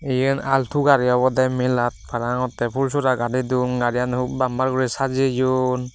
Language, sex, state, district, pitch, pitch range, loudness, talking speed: Chakma, male, Tripura, Dhalai, 130 Hz, 125-130 Hz, -21 LUFS, 150 wpm